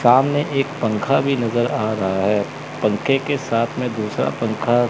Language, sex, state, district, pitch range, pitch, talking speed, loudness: Hindi, male, Chandigarh, Chandigarh, 110-135 Hz, 120 Hz, 170 wpm, -20 LUFS